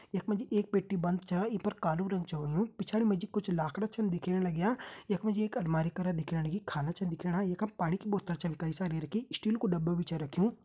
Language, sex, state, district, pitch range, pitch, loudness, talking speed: Garhwali, male, Uttarakhand, Uttarkashi, 170-210 Hz, 185 Hz, -34 LUFS, 235 wpm